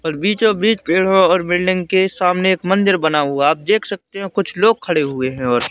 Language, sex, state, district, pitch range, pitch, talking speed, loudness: Hindi, male, Madhya Pradesh, Katni, 160-195 Hz, 185 Hz, 230 wpm, -16 LUFS